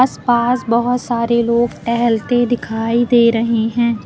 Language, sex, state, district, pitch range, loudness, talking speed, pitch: Hindi, female, Uttar Pradesh, Lucknow, 230-240 Hz, -16 LUFS, 150 wpm, 235 Hz